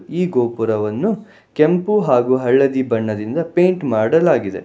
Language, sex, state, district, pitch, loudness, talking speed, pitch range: Kannada, male, Karnataka, Bangalore, 140 Hz, -17 LUFS, 105 wpm, 115-180 Hz